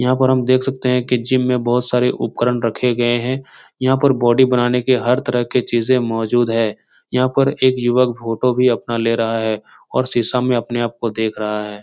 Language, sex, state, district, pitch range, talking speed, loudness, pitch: Hindi, male, Bihar, Supaul, 115-125 Hz, 230 wpm, -17 LUFS, 125 Hz